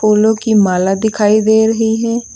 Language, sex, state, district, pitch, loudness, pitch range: Hindi, female, Uttar Pradesh, Lucknow, 220 Hz, -12 LUFS, 210-220 Hz